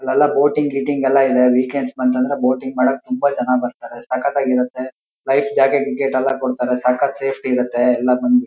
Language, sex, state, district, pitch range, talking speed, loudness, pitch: Kannada, male, Karnataka, Shimoga, 125-135 Hz, 165 wpm, -17 LUFS, 130 Hz